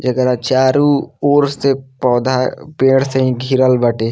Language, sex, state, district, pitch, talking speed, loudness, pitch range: Bhojpuri, male, Bihar, Muzaffarpur, 130 Hz, 145 wpm, -14 LUFS, 125-135 Hz